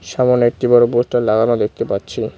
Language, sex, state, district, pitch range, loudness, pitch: Bengali, male, West Bengal, Cooch Behar, 115-125 Hz, -15 LUFS, 120 Hz